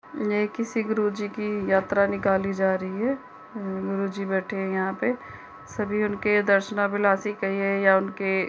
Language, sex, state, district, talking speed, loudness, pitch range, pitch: Hindi, female, Uttar Pradesh, Budaun, 160 wpm, -25 LUFS, 190-210 Hz, 195 Hz